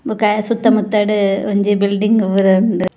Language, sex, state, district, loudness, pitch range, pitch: Tulu, female, Karnataka, Dakshina Kannada, -15 LUFS, 200-215 Hz, 205 Hz